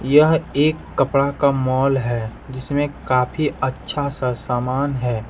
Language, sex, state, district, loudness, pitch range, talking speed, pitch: Hindi, male, Jharkhand, Deoghar, -20 LUFS, 125-145 Hz, 135 wpm, 135 Hz